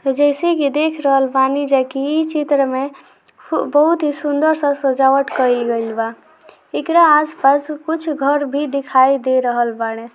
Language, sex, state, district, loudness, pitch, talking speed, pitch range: Hindi, female, Bihar, Gopalganj, -16 LUFS, 280 Hz, 170 wpm, 265-300 Hz